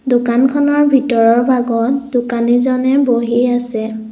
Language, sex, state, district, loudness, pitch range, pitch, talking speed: Assamese, female, Assam, Kamrup Metropolitan, -14 LUFS, 235-260 Hz, 245 Hz, 100 wpm